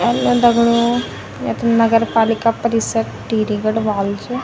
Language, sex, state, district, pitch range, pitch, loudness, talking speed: Garhwali, female, Uttarakhand, Tehri Garhwal, 220-235 Hz, 230 Hz, -16 LUFS, 110 wpm